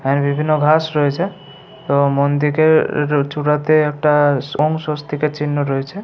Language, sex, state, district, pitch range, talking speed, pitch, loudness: Bengali, male, West Bengal, Paschim Medinipur, 140-155 Hz, 130 wpm, 150 Hz, -16 LUFS